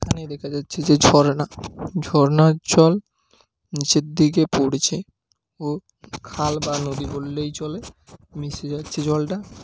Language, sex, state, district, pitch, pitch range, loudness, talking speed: Bengali, male, West Bengal, Paschim Medinipur, 150 Hz, 145-155 Hz, -20 LUFS, 120 wpm